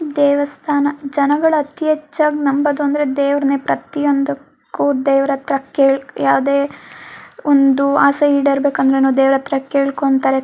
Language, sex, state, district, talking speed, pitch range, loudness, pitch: Kannada, female, Karnataka, Mysore, 100 wpm, 275-290 Hz, -16 LUFS, 280 Hz